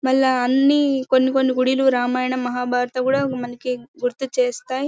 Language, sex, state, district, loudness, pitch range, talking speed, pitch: Telugu, female, Karnataka, Bellary, -20 LUFS, 250-265 Hz, 135 wpm, 255 Hz